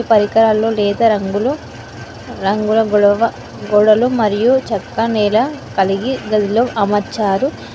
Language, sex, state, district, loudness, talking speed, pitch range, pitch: Telugu, female, Telangana, Mahabubabad, -15 LUFS, 85 wpm, 205-230 Hz, 215 Hz